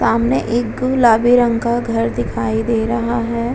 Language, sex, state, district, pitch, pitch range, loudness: Hindi, female, Uttar Pradesh, Muzaffarnagar, 235 Hz, 225-240 Hz, -16 LUFS